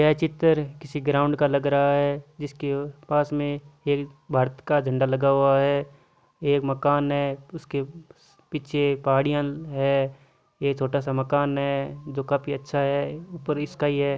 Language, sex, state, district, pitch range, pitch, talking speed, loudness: Marwari, male, Rajasthan, Nagaur, 140-150 Hz, 145 Hz, 155 wpm, -25 LUFS